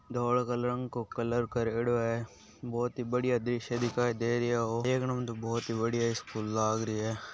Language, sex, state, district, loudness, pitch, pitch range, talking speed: Marwari, male, Rajasthan, Nagaur, -32 LUFS, 120 Hz, 115-120 Hz, 195 wpm